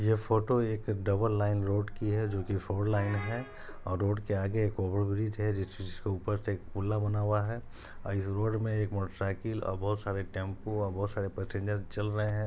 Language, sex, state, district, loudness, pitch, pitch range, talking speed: Maithili, male, Bihar, Supaul, -33 LUFS, 105 Hz, 100-105 Hz, 205 wpm